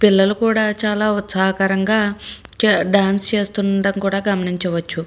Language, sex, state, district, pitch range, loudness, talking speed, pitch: Telugu, female, Andhra Pradesh, Srikakulam, 195-210 Hz, -18 LUFS, 95 wpm, 200 Hz